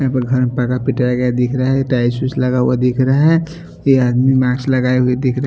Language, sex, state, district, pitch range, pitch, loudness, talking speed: Hindi, male, Odisha, Sambalpur, 125-130 Hz, 130 Hz, -15 LUFS, 165 wpm